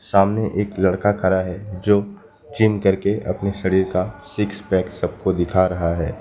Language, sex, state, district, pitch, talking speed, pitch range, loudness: Hindi, male, West Bengal, Alipurduar, 95 Hz, 165 wpm, 95-105 Hz, -20 LUFS